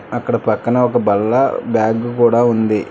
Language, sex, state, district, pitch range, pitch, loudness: Telugu, male, Telangana, Hyderabad, 110-120 Hz, 115 Hz, -15 LUFS